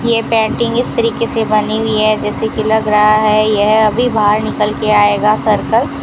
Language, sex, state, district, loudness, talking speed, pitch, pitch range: Hindi, female, Rajasthan, Bikaner, -13 LUFS, 210 wpm, 215 Hz, 215-225 Hz